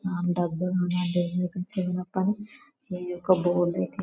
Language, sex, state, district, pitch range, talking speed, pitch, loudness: Telugu, male, Telangana, Karimnagar, 175-185 Hz, 75 wpm, 180 Hz, -27 LUFS